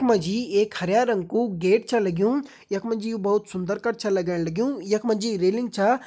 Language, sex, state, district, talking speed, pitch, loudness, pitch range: Hindi, male, Uttarakhand, Uttarkashi, 245 wpm, 215 Hz, -24 LUFS, 195-230 Hz